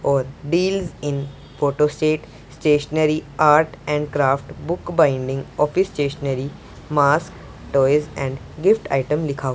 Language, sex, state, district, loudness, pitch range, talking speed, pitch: Hindi, female, Punjab, Pathankot, -20 LUFS, 140-155 Hz, 125 wpm, 145 Hz